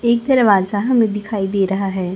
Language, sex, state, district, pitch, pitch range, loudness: Hindi, female, Chhattisgarh, Raipur, 205 Hz, 195-235 Hz, -17 LUFS